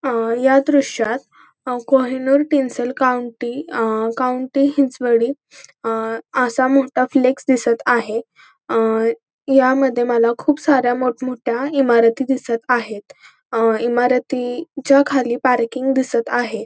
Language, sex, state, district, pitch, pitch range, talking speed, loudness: Marathi, female, Maharashtra, Pune, 250 Hz, 235-270 Hz, 110 wpm, -18 LUFS